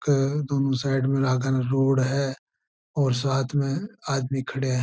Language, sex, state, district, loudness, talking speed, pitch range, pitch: Marwari, male, Rajasthan, Churu, -25 LUFS, 160 wpm, 135-140 Hz, 135 Hz